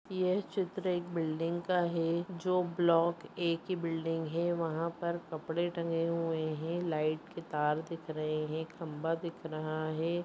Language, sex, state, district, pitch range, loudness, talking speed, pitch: Hindi, female, West Bengal, Purulia, 160-175 Hz, -34 LUFS, 140 wpm, 165 Hz